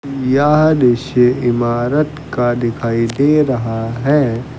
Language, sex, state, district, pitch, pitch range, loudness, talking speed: Hindi, male, Uttar Pradesh, Lucknow, 125 Hz, 120-145 Hz, -15 LUFS, 105 wpm